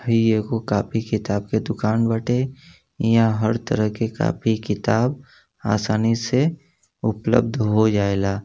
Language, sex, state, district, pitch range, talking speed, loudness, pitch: Bhojpuri, male, Uttar Pradesh, Gorakhpur, 110-120 Hz, 130 wpm, -21 LUFS, 110 Hz